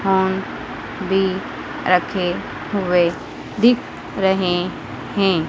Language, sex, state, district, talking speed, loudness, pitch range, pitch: Hindi, female, Madhya Pradesh, Dhar, 75 wpm, -20 LUFS, 180-195 Hz, 190 Hz